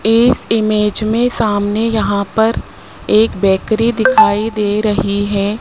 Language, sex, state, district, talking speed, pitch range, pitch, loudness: Hindi, male, Rajasthan, Jaipur, 130 wpm, 205-225 Hz, 215 Hz, -14 LUFS